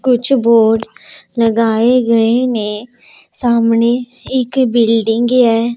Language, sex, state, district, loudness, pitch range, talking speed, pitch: Hindi, female, Punjab, Pathankot, -13 LUFS, 225-250 Hz, 95 wpm, 235 Hz